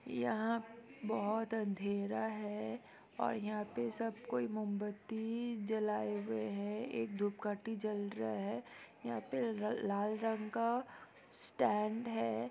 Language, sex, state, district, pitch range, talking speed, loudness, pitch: Hindi, female, Bihar, East Champaran, 200-225 Hz, 120 wpm, -39 LUFS, 210 Hz